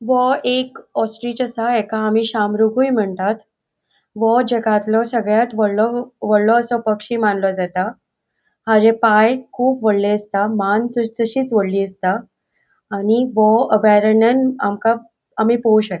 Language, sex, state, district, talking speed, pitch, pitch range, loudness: Konkani, female, Goa, North and South Goa, 120 wpm, 220 Hz, 210-235 Hz, -17 LUFS